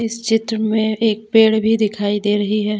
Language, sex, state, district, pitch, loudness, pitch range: Hindi, female, Jharkhand, Deoghar, 220 Hz, -17 LUFS, 210-225 Hz